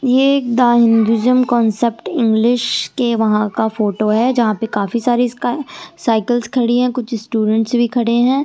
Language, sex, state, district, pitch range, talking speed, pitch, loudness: Hindi, female, Delhi, New Delhi, 225-250 Hz, 155 wpm, 240 Hz, -15 LUFS